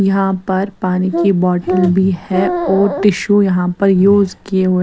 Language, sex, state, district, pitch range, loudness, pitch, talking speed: Hindi, female, Bihar, West Champaran, 180-195 Hz, -14 LUFS, 190 Hz, 175 wpm